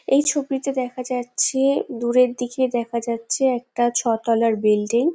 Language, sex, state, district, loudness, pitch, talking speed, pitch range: Bengali, female, West Bengal, Jhargram, -21 LUFS, 245 Hz, 140 wpm, 235-265 Hz